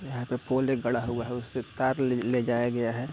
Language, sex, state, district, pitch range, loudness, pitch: Hindi, male, Chhattisgarh, Raigarh, 120-130 Hz, -29 LUFS, 125 Hz